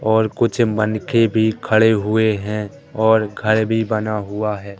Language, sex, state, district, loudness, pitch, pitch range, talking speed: Hindi, male, Madhya Pradesh, Katni, -18 LUFS, 110 Hz, 105-110 Hz, 165 wpm